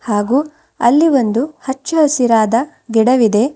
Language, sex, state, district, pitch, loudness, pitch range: Kannada, female, Karnataka, Bidar, 250 Hz, -14 LUFS, 230-290 Hz